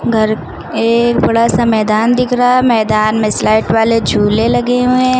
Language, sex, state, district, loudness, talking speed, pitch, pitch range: Hindi, female, Uttar Pradesh, Lucknow, -12 LUFS, 185 wpm, 225 Hz, 215-240 Hz